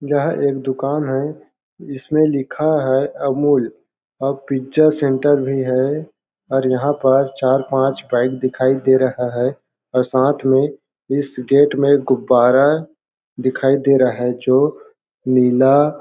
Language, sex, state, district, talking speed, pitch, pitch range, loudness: Hindi, male, Chhattisgarh, Balrampur, 135 wpm, 135 Hz, 130-145 Hz, -17 LUFS